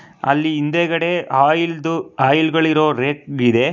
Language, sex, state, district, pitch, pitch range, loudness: Kannada, male, Karnataka, Bangalore, 155 Hz, 140-165 Hz, -17 LUFS